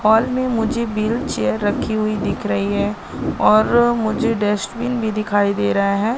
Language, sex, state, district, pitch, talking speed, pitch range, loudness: Hindi, female, Madhya Pradesh, Katni, 215 Hz, 175 wpm, 205-235 Hz, -19 LUFS